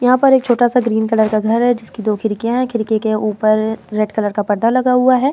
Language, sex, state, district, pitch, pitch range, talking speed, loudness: Hindi, female, Bihar, Vaishali, 225 Hz, 215-245 Hz, 260 wpm, -15 LUFS